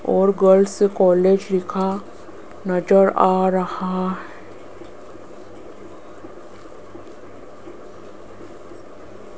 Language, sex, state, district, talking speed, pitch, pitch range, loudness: Hindi, female, Rajasthan, Jaipur, 45 wpm, 190 Hz, 185-195 Hz, -18 LUFS